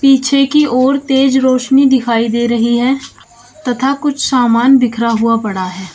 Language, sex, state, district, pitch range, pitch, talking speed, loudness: Hindi, female, Uttar Pradesh, Shamli, 235-270 Hz, 255 Hz, 160 wpm, -12 LUFS